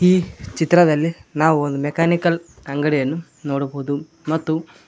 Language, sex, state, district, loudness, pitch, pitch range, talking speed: Kannada, male, Karnataka, Koppal, -20 LUFS, 160 Hz, 145-170 Hz, 100 wpm